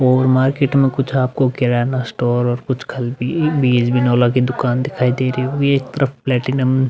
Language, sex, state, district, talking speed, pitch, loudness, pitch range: Hindi, male, Uttar Pradesh, Budaun, 130 wpm, 130 Hz, -17 LUFS, 125-135 Hz